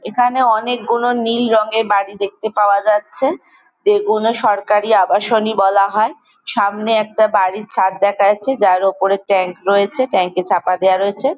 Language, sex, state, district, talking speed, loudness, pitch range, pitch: Bengali, female, West Bengal, Jalpaiguri, 145 wpm, -15 LUFS, 200-235 Hz, 210 Hz